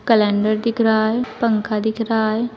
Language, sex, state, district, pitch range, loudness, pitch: Hindi, female, Uttar Pradesh, Saharanpur, 215-230 Hz, -18 LUFS, 220 Hz